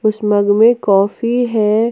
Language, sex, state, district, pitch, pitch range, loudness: Hindi, female, Jharkhand, Ranchi, 215 Hz, 205-230 Hz, -14 LUFS